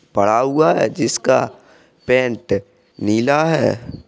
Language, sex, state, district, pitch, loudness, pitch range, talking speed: Hindi, male, Uttar Pradesh, Jalaun, 125 Hz, -17 LUFS, 110-155 Hz, 105 wpm